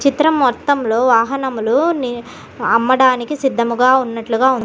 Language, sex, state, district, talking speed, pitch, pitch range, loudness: Telugu, female, Andhra Pradesh, Guntur, 105 wpm, 255 Hz, 235-275 Hz, -15 LUFS